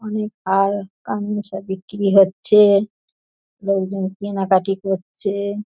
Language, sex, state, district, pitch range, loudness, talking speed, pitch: Bengali, female, West Bengal, Dakshin Dinajpur, 195-205 Hz, -19 LUFS, 75 wpm, 195 Hz